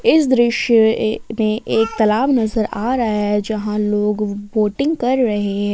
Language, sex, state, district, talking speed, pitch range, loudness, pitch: Hindi, female, Jharkhand, Palamu, 155 wpm, 210-240 Hz, -17 LUFS, 220 Hz